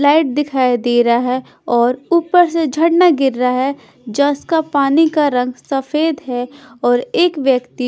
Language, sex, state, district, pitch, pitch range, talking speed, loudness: Hindi, female, Bihar, Patna, 275 Hz, 250-310 Hz, 165 wpm, -15 LUFS